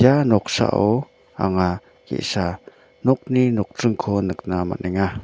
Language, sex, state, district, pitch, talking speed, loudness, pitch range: Garo, male, Meghalaya, North Garo Hills, 100 Hz, 90 wpm, -21 LUFS, 95-125 Hz